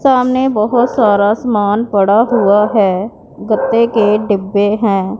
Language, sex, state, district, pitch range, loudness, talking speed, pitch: Hindi, female, Punjab, Pathankot, 205-235 Hz, -12 LUFS, 125 wpm, 210 Hz